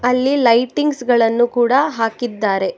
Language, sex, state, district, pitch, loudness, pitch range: Kannada, female, Karnataka, Bangalore, 240 Hz, -16 LUFS, 230-255 Hz